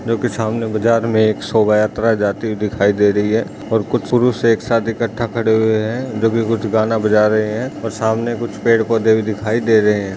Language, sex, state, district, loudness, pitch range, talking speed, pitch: Hindi, male, Chhattisgarh, Bastar, -16 LUFS, 110-115 Hz, 235 wpm, 110 Hz